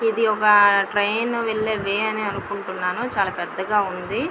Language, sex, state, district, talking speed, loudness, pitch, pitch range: Telugu, female, Andhra Pradesh, Visakhapatnam, 125 wpm, -21 LUFS, 205 Hz, 200-220 Hz